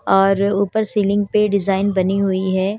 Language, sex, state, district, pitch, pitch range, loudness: Hindi, female, Haryana, Charkhi Dadri, 200 Hz, 195-205 Hz, -17 LUFS